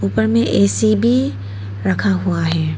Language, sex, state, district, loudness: Hindi, female, Arunachal Pradesh, Papum Pare, -16 LUFS